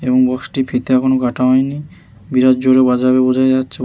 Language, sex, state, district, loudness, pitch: Bengali, male, West Bengal, Malda, -14 LUFS, 130 Hz